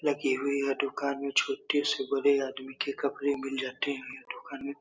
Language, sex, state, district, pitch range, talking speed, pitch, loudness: Hindi, male, Bihar, Supaul, 135-140 Hz, 210 wpm, 140 Hz, -30 LUFS